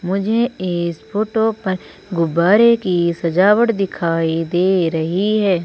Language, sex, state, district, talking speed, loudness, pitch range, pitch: Hindi, female, Madhya Pradesh, Umaria, 115 wpm, -17 LUFS, 170-210 Hz, 185 Hz